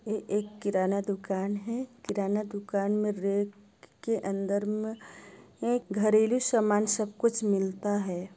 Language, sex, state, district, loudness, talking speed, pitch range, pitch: Hindi, female, Chhattisgarh, Sarguja, -29 LUFS, 135 wpm, 200-215 Hz, 205 Hz